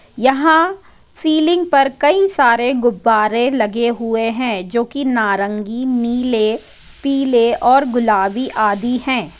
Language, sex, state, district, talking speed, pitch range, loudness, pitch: Hindi, female, Bihar, Darbhanga, 115 wpm, 225-270 Hz, -15 LUFS, 245 Hz